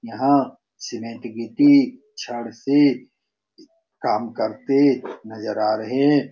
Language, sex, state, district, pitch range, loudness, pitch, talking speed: Hindi, male, Bihar, Saran, 115-145 Hz, -20 LUFS, 135 Hz, 105 wpm